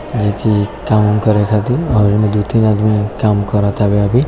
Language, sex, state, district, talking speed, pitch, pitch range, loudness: Maithili, male, Bihar, Samastipur, 155 wpm, 105 Hz, 105-110 Hz, -14 LUFS